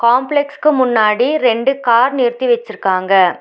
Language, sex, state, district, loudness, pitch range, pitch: Tamil, female, Tamil Nadu, Nilgiris, -14 LUFS, 225-270 Hz, 245 Hz